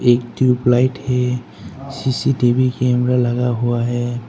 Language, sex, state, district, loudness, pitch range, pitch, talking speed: Hindi, male, Arunachal Pradesh, Papum Pare, -17 LUFS, 120-130 Hz, 125 Hz, 110 wpm